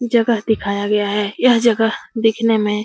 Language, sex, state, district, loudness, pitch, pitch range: Hindi, female, Uttar Pradesh, Etah, -17 LUFS, 225 Hz, 210-235 Hz